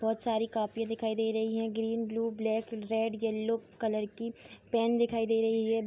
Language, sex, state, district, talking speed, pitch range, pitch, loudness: Hindi, female, Bihar, Begusarai, 205 wpm, 220-230 Hz, 225 Hz, -32 LUFS